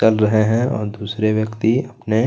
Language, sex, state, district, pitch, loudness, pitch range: Hindi, male, Chhattisgarh, Kabirdham, 110 Hz, -19 LUFS, 110-115 Hz